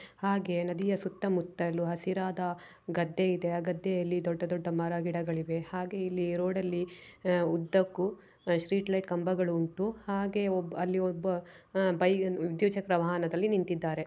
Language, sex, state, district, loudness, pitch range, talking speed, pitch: Kannada, female, Karnataka, Chamarajanagar, -32 LUFS, 170-190 Hz, 115 wpm, 180 Hz